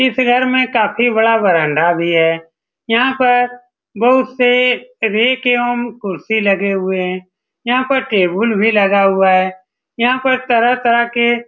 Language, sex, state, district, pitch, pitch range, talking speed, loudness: Hindi, male, Bihar, Saran, 235 Hz, 195-250 Hz, 155 wpm, -14 LUFS